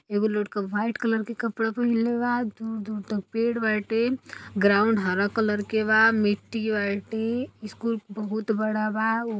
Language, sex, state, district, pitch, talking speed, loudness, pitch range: Bhojpuri, female, Uttar Pradesh, Deoria, 220 Hz, 155 wpm, -25 LUFS, 210-225 Hz